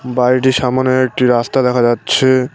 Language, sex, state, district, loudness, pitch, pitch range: Bengali, male, West Bengal, Cooch Behar, -13 LUFS, 130 Hz, 125-130 Hz